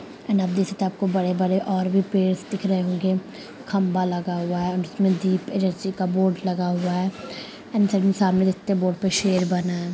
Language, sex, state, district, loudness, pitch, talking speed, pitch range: Hindi, female, Uttar Pradesh, Muzaffarnagar, -23 LUFS, 190 Hz, 230 wpm, 180-195 Hz